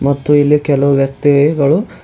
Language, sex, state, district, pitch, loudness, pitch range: Kannada, male, Karnataka, Bidar, 145 Hz, -12 LUFS, 140-150 Hz